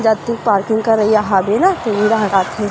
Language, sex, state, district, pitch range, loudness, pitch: Chhattisgarhi, female, Chhattisgarh, Rajnandgaon, 205-225 Hz, -15 LUFS, 215 Hz